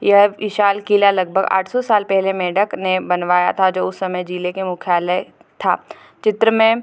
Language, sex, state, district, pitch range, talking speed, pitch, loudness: Hindi, female, Bihar, Gopalganj, 180-205 Hz, 200 wpm, 190 Hz, -17 LUFS